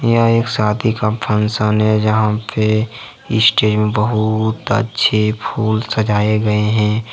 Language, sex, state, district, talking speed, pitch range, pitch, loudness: Hindi, male, Jharkhand, Ranchi, 135 wpm, 105-115 Hz, 110 Hz, -16 LUFS